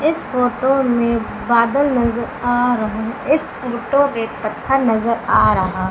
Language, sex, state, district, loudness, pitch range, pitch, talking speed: Hindi, female, Madhya Pradesh, Umaria, -17 LUFS, 225-270 Hz, 240 Hz, 140 wpm